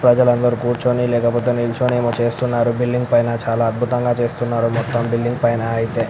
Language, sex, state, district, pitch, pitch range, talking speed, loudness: Telugu, male, Andhra Pradesh, Visakhapatnam, 120 Hz, 115-120 Hz, 155 wpm, -18 LUFS